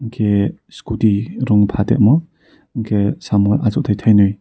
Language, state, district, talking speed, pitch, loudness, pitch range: Kokborok, Tripura, Dhalai, 110 wpm, 110 Hz, -16 LUFS, 100-145 Hz